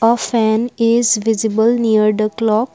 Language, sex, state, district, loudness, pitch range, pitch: English, female, Assam, Kamrup Metropolitan, -15 LUFS, 220-230 Hz, 225 Hz